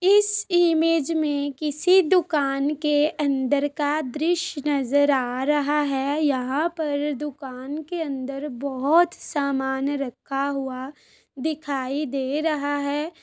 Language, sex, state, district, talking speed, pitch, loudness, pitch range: Hindi, female, Chhattisgarh, Bastar, 120 wpm, 290 Hz, -23 LUFS, 275-315 Hz